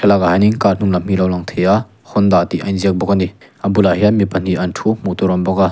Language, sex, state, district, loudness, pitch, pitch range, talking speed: Mizo, male, Mizoram, Aizawl, -15 LUFS, 95 Hz, 95-100 Hz, 325 wpm